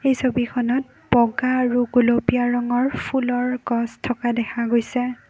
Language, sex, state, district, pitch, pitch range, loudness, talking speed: Assamese, female, Assam, Kamrup Metropolitan, 245 Hz, 240-250 Hz, -21 LUFS, 125 wpm